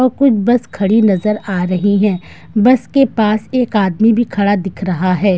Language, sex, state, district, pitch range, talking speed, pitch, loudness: Hindi, female, Delhi, New Delhi, 195-235 Hz, 200 wpm, 210 Hz, -14 LUFS